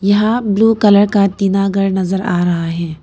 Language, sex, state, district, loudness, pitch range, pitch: Hindi, female, Arunachal Pradesh, Papum Pare, -14 LUFS, 185-205 Hz, 195 Hz